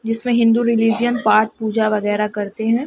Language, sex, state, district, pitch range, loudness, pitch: Hindi, female, Bihar, Lakhisarai, 215-230 Hz, -17 LUFS, 225 Hz